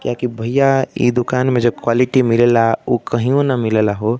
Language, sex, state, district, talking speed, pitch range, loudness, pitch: Bhojpuri, male, Uttar Pradesh, Deoria, 215 wpm, 115-130 Hz, -16 LUFS, 120 Hz